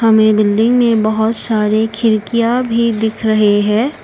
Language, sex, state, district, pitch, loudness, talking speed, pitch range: Hindi, female, Assam, Kamrup Metropolitan, 220 Hz, -13 LUFS, 150 wpm, 215-230 Hz